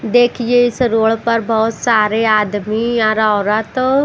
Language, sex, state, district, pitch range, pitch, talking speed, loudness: Hindi, female, Bihar, Katihar, 215-240 Hz, 225 Hz, 135 wpm, -14 LUFS